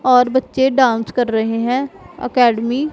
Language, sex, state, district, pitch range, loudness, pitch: Hindi, female, Punjab, Pathankot, 230-260 Hz, -16 LUFS, 250 Hz